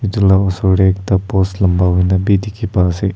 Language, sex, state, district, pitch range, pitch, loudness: Nagamese, male, Nagaland, Kohima, 95-100 Hz, 95 Hz, -14 LUFS